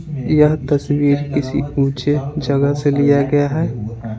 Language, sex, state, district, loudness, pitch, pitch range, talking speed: Hindi, male, Bihar, Patna, -17 LUFS, 145 Hz, 140-145 Hz, 130 wpm